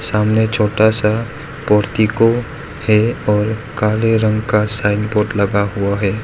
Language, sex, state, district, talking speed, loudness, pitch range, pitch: Hindi, male, Arunachal Pradesh, Lower Dibang Valley, 145 wpm, -16 LUFS, 105-110 Hz, 105 Hz